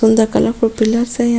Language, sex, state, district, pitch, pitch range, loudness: Hindi, female, Goa, North and South Goa, 230 Hz, 225-235 Hz, -15 LUFS